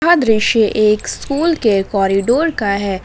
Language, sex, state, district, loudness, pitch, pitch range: Hindi, female, Jharkhand, Ranchi, -15 LUFS, 220 Hz, 200-280 Hz